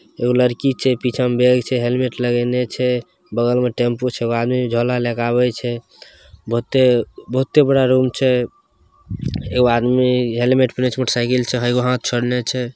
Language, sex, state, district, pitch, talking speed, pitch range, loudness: Maithili, male, Bihar, Samastipur, 125 Hz, 165 wpm, 120-125 Hz, -18 LUFS